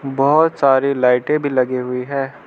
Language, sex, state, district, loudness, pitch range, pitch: Hindi, male, Arunachal Pradesh, Lower Dibang Valley, -16 LUFS, 130-140 Hz, 135 Hz